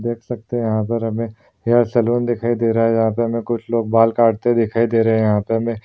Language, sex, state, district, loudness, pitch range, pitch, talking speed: Hindi, male, Uttar Pradesh, Varanasi, -18 LUFS, 115-120 Hz, 115 Hz, 275 wpm